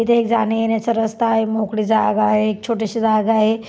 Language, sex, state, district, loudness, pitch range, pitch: Marathi, female, Maharashtra, Chandrapur, -18 LUFS, 215-230 Hz, 220 Hz